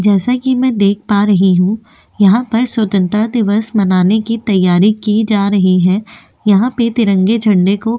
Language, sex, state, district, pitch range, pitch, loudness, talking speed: Hindi, female, Goa, North and South Goa, 195-225 Hz, 210 Hz, -12 LUFS, 180 wpm